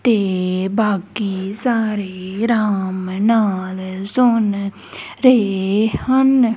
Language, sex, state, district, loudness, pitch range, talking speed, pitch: Punjabi, female, Punjab, Kapurthala, -18 LUFS, 190-230 Hz, 75 wpm, 205 Hz